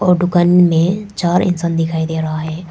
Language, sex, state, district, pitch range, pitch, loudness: Hindi, female, Arunachal Pradesh, Papum Pare, 165-180 Hz, 175 Hz, -15 LUFS